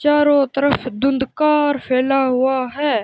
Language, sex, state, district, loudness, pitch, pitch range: Hindi, male, Rajasthan, Bikaner, -17 LUFS, 275 Hz, 260-290 Hz